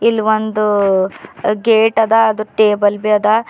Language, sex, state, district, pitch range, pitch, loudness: Kannada, female, Karnataka, Bidar, 210-220 Hz, 215 Hz, -14 LUFS